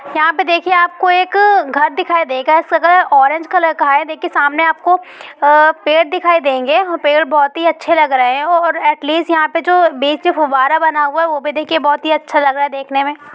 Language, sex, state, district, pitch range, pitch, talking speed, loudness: Hindi, female, Bihar, East Champaran, 290-340 Hz, 315 Hz, 230 wpm, -13 LUFS